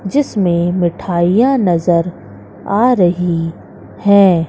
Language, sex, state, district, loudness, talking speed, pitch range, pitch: Hindi, female, Madhya Pradesh, Katni, -14 LUFS, 80 wpm, 170-200 Hz, 175 Hz